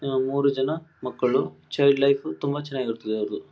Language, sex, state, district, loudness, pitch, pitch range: Kannada, male, Karnataka, Dharwad, -24 LUFS, 140 Hz, 120-140 Hz